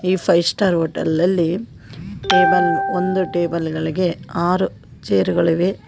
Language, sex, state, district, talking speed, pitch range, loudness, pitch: Kannada, female, Karnataka, Koppal, 125 wpm, 160-190 Hz, -18 LUFS, 175 Hz